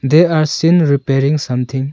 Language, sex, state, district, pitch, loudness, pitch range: English, male, Arunachal Pradesh, Longding, 145 Hz, -14 LUFS, 135-160 Hz